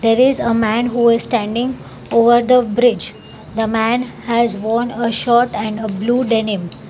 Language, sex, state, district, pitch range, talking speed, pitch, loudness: English, female, Telangana, Hyderabad, 220-240 Hz, 165 wpm, 230 Hz, -16 LUFS